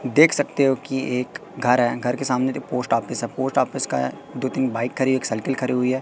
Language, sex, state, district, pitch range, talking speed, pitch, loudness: Hindi, male, Madhya Pradesh, Katni, 125-135 Hz, 260 wpm, 130 Hz, -22 LUFS